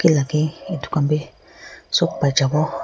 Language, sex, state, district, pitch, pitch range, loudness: Nagamese, female, Nagaland, Kohima, 150 Hz, 140-155 Hz, -20 LUFS